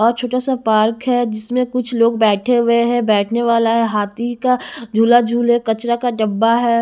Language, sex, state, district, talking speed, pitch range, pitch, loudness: Hindi, female, Haryana, Charkhi Dadri, 195 wpm, 225-245 Hz, 235 Hz, -16 LUFS